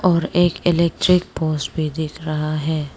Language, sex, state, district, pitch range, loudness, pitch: Hindi, female, Arunachal Pradesh, Lower Dibang Valley, 155-175 Hz, -20 LUFS, 160 Hz